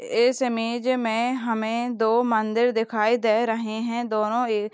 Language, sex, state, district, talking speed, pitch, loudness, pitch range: Hindi, female, Maharashtra, Solapur, 150 wpm, 230 Hz, -23 LUFS, 220-240 Hz